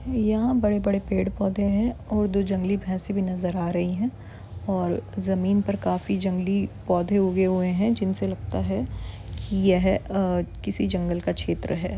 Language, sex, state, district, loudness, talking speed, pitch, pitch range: Hindi, female, Chhattisgarh, Bilaspur, -25 LUFS, 170 wpm, 190 Hz, 175-200 Hz